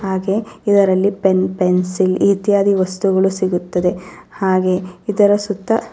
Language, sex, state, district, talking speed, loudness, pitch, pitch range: Kannada, female, Karnataka, Raichur, 110 wpm, -16 LUFS, 190 Hz, 185-200 Hz